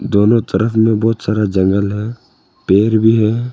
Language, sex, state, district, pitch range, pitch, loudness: Hindi, male, Arunachal Pradesh, Longding, 100-110 Hz, 110 Hz, -14 LUFS